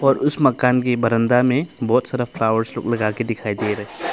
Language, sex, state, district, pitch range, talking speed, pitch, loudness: Hindi, male, Arunachal Pradesh, Longding, 115-130 Hz, 220 wpm, 120 Hz, -19 LUFS